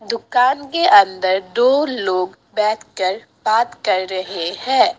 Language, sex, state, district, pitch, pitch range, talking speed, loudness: Hindi, female, Assam, Sonitpur, 220 Hz, 185-260 Hz, 120 wpm, -17 LUFS